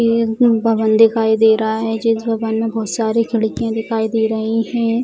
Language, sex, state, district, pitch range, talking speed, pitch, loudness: Hindi, female, Bihar, Sitamarhi, 220-230 Hz, 200 wpm, 225 Hz, -16 LUFS